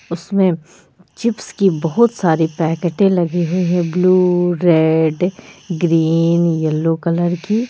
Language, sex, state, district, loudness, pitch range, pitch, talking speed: Hindi, female, Jharkhand, Ranchi, -16 LUFS, 165-185 Hz, 175 Hz, 115 wpm